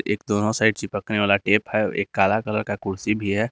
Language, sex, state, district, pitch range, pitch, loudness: Hindi, male, Jharkhand, Garhwa, 100-105 Hz, 105 Hz, -22 LUFS